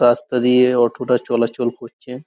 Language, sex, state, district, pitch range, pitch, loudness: Bengali, male, West Bengal, Kolkata, 120-125 Hz, 125 Hz, -17 LUFS